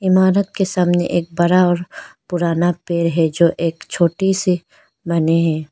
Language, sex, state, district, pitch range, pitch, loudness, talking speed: Hindi, female, Arunachal Pradesh, Lower Dibang Valley, 170-185 Hz, 175 Hz, -17 LUFS, 155 wpm